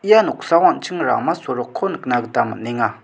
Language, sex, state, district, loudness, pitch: Garo, male, Meghalaya, South Garo Hills, -19 LUFS, 120 Hz